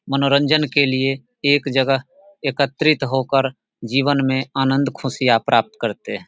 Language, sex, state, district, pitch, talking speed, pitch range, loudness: Hindi, male, Bihar, Samastipur, 135 Hz, 135 wpm, 135-140 Hz, -19 LUFS